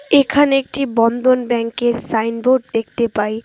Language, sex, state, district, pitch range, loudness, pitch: Bengali, female, West Bengal, Cooch Behar, 230-270 Hz, -16 LUFS, 240 Hz